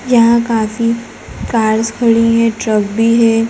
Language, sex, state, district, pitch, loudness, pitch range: Hindi, female, Bihar, Gaya, 230 Hz, -13 LUFS, 225-230 Hz